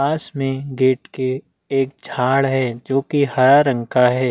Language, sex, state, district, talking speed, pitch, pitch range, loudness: Hindi, male, Chhattisgarh, Bastar, 180 wpm, 135 Hz, 130-140 Hz, -18 LUFS